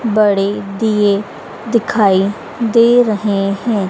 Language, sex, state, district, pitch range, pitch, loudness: Hindi, female, Madhya Pradesh, Dhar, 200-225 Hz, 210 Hz, -14 LUFS